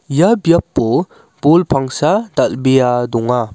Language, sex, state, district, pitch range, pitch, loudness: Garo, male, Meghalaya, West Garo Hills, 125-170 Hz, 140 Hz, -14 LUFS